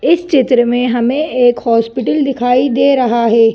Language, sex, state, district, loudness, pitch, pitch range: Hindi, female, Madhya Pradesh, Bhopal, -12 LUFS, 245 Hz, 240-270 Hz